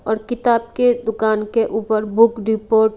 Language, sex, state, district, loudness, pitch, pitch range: Hindi, female, Haryana, Rohtak, -18 LUFS, 220 Hz, 220-235 Hz